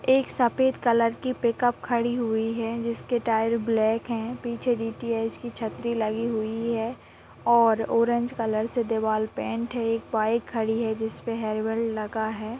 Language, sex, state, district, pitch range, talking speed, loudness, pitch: Hindi, female, Bihar, Muzaffarpur, 220-235 Hz, 160 wpm, -26 LUFS, 230 Hz